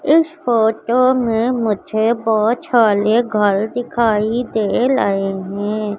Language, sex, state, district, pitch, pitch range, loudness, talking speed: Hindi, female, Madhya Pradesh, Katni, 225 Hz, 210-245 Hz, -16 LUFS, 110 wpm